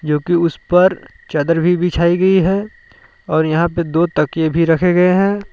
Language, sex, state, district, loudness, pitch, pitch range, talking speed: Hindi, male, Jharkhand, Palamu, -15 LUFS, 175 Hz, 165-190 Hz, 195 wpm